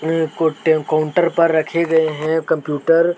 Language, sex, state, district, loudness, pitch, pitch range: Hindi, male, Jharkhand, Deoghar, -17 LUFS, 160 Hz, 155-165 Hz